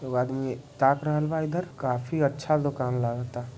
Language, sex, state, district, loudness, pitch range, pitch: Hindi, male, Bihar, Sitamarhi, -27 LUFS, 125-150 Hz, 135 Hz